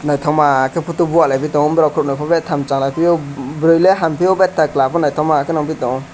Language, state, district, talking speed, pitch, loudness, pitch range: Kokborok, Tripura, West Tripura, 185 wpm, 150 Hz, -15 LUFS, 140-165 Hz